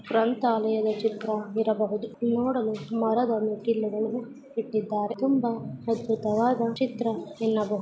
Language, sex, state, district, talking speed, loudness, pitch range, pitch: Kannada, female, Karnataka, Mysore, 85 wpm, -27 LUFS, 215-235 Hz, 225 Hz